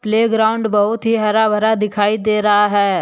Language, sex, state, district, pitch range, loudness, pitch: Hindi, male, Jharkhand, Deoghar, 205-220 Hz, -15 LUFS, 215 Hz